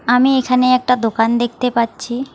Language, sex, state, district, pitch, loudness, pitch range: Bengali, female, West Bengal, Alipurduar, 250 Hz, -15 LUFS, 235-255 Hz